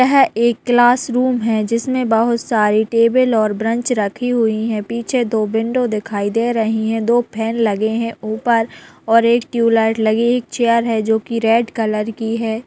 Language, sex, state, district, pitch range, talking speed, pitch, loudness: Hindi, female, Chhattisgarh, Raigarh, 220-240 Hz, 170 wpm, 230 Hz, -16 LUFS